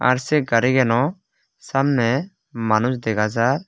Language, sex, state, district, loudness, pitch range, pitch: Chakma, male, Tripura, West Tripura, -20 LUFS, 115-140 Hz, 125 Hz